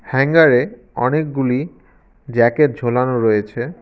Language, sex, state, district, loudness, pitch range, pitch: Bengali, male, West Bengal, Cooch Behar, -16 LUFS, 120-150 Hz, 125 Hz